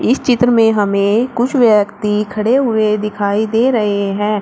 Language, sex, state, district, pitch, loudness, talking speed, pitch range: Hindi, female, Uttar Pradesh, Shamli, 215 Hz, -14 LUFS, 150 wpm, 210-240 Hz